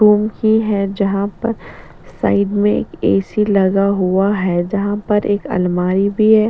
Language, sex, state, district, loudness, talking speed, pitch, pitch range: Hindi, female, Bihar, Patna, -16 LUFS, 165 wpm, 200 Hz, 195-210 Hz